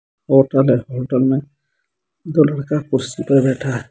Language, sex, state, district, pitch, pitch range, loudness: Hindi, male, Jharkhand, Deoghar, 135 Hz, 130-145 Hz, -17 LUFS